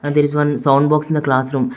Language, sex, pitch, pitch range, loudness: English, male, 145 Hz, 135-150 Hz, -16 LUFS